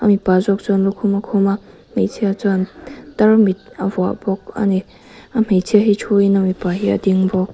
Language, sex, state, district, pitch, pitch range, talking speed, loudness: Mizo, female, Mizoram, Aizawl, 200 Hz, 190-210 Hz, 200 wpm, -17 LUFS